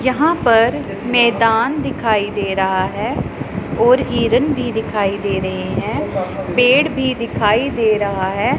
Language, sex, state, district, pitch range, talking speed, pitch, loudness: Hindi, female, Punjab, Pathankot, 200-245 Hz, 140 wpm, 225 Hz, -16 LUFS